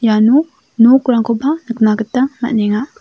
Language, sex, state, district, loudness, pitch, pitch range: Garo, female, Meghalaya, South Garo Hills, -13 LUFS, 240 Hz, 220-270 Hz